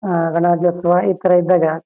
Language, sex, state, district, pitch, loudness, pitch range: Kannada, male, Karnataka, Shimoga, 175 Hz, -15 LUFS, 170-180 Hz